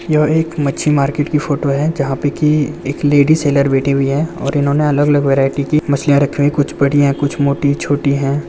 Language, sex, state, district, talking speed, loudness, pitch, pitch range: Hindi, male, Andhra Pradesh, Visakhapatnam, 150 wpm, -14 LUFS, 145 Hz, 140-150 Hz